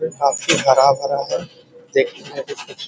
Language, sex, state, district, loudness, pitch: Hindi, male, Bihar, Muzaffarpur, -18 LUFS, 160 Hz